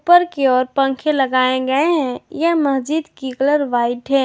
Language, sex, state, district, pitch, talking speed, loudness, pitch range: Hindi, female, Jharkhand, Ranchi, 270 Hz, 185 wpm, -17 LUFS, 260-300 Hz